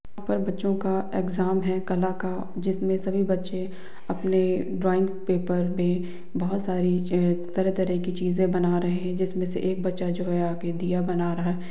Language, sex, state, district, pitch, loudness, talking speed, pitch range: Hindi, female, Bihar, Lakhisarai, 185 Hz, -26 LUFS, 170 wpm, 180-185 Hz